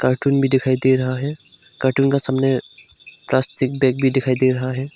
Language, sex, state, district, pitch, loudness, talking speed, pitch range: Hindi, male, Arunachal Pradesh, Lower Dibang Valley, 130 Hz, -18 LUFS, 195 wpm, 130-135 Hz